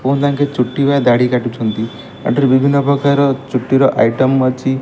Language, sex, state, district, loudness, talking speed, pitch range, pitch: Odia, male, Odisha, Malkangiri, -14 LUFS, 135 wpm, 125-140 Hz, 130 Hz